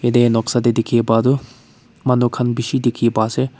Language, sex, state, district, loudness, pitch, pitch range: Nagamese, male, Nagaland, Kohima, -17 LUFS, 120 Hz, 115-125 Hz